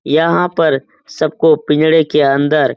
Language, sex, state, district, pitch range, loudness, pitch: Hindi, male, Uttar Pradesh, Etah, 145-160 Hz, -13 LUFS, 155 Hz